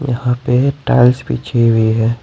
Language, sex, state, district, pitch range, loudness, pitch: Hindi, male, Jharkhand, Ranchi, 115-125 Hz, -14 LUFS, 125 Hz